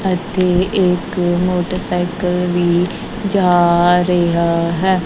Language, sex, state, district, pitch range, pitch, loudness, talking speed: Punjabi, female, Punjab, Kapurthala, 175-185 Hz, 180 Hz, -16 LUFS, 85 wpm